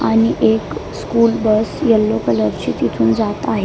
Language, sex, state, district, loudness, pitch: Marathi, female, Maharashtra, Mumbai Suburban, -16 LUFS, 150 Hz